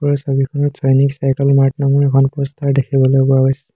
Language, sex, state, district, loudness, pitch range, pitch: Assamese, male, Assam, Hailakandi, -14 LUFS, 135-140 Hz, 135 Hz